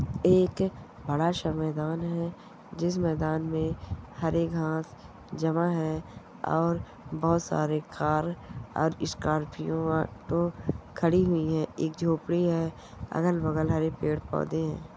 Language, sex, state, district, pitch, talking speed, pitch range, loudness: Hindi, female, Andhra Pradesh, Chittoor, 160 Hz, 125 wpm, 155-170 Hz, -29 LUFS